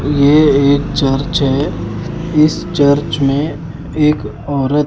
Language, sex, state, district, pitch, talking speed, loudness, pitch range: Hindi, male, Haryana, Charkhi Dadri, 145 Hz, 125 wpm, -14 LUFS, 140-150 Hz